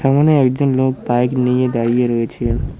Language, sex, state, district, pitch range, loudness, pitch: Bengali, male, West Bengal, Cooch Behar, 120-130 Hz, -16 LUFS, 125 Hz